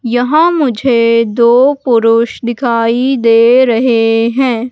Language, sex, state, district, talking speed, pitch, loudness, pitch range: Hindi, female, Madhya Pradesh, Katni, 100 wpm, 235 Hz, -10 LUFS, 230-255 Hz